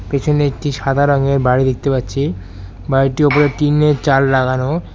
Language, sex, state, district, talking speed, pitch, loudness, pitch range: Bengali, male, West Bengal, Alipurduar, 145 wpm, 135 Hz, -15 LUFS, 130-145 Hz